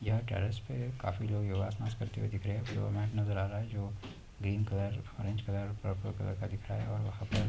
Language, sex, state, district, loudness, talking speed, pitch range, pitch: Hindi, male, Uttar Pradesh, Hamirpur, -37 LUFS, 265 wpm, 100-110 Hz, 105 Hz